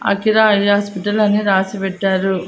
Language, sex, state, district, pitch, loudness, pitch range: Telugu, female, Andhra Pradesh, Annamaya, 200 Hz, -16 LUFS, 195-205 Hz